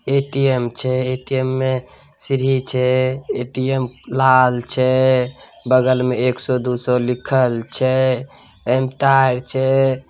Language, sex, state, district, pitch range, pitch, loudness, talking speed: Maithili, male, Bihar, Samastipur, 125-130 Hz, 130 Hz, -18 LUFS, 120 wpm